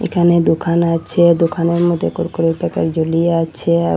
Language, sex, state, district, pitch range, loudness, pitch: Bengali, female, Assam, Hailakandi, 160-170 Hz, -15 LUFS, 165 Hz